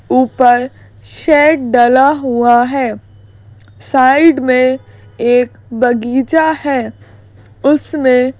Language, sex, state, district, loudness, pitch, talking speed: Hindi, female, Madhya Pradesh, Bhopal, -12 LUFS, 250 Hz, 80 wpm